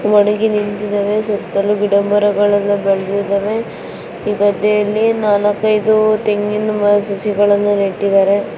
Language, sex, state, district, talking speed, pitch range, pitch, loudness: Kannada, female, Karnataka, Belgaum, 75 wpm, 205-210 Hz, 205 Hz, -15 LUFS